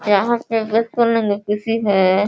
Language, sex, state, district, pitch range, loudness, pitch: Hindi, female, Bihar, Sitamarhi, 205-230 Hz, -18 LUFS, 220 Hz